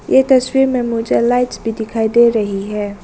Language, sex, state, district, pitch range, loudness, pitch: Hindi, female, Arunachal Pradesh, Lower Dibang Valley, 220-250 Hz, -15 LUFS, 230 Hz